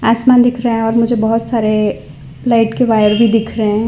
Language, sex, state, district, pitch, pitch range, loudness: Hindi, female, Gujarat, Valsad, 225 Hz, 215-230 Hz, -13 LUFS